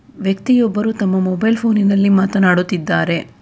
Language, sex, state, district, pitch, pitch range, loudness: Kannada, female, Karnataka, Bangalore, 195 Hz, 190-220 Hz, -15 LUFS